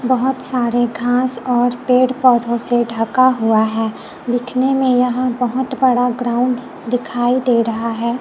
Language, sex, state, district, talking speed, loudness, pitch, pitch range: Hindi, male, Chhattisgarh, Raipur, 145 wpm, -16 LUFS, 245 Hz, 235-255 Hz